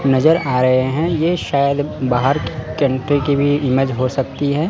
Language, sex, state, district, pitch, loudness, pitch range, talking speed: Hindi, male, Chandigarh, Chandigarh, 140 Hz, -17 LUFS, 130-145 Hz, 180 wpm